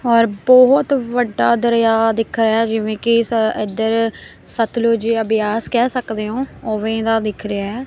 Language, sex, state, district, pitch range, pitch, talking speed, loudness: Punjabi, female, Punjab, Kapurthala, 220-235 Hz, 225 Hz, 135 wpm, -17 LUFS